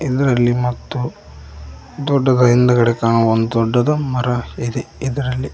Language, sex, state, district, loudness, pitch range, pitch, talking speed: Kannada, male, Karnataka, Koppal, -17 LUFS, 115-130 Hz, 125 Hz, 110 wpm